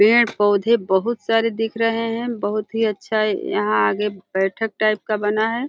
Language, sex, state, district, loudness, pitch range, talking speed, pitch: Hindi, female, Uttar Pradesh, Deoria, -20 LUFS, 205-230 Hz, 170 wpm, 215 Hz